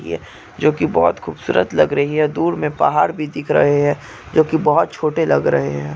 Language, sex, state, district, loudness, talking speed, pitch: Hindi, male, Andhra Pradesh, Chittoor, -17 LUFS, 210 wpm, 150 Hz